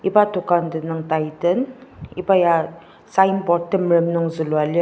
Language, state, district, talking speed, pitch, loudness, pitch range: Ao, Nagaland, Dimapur, 135 wpm, 170 Hz, -19 LUFS, 165-190 Hz